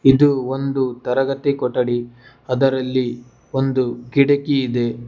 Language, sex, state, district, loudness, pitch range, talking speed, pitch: Kannada, male, Karnataka, Bangalore, -19 LUFS, 120-135 Hz, 95 wpm, 130 Hz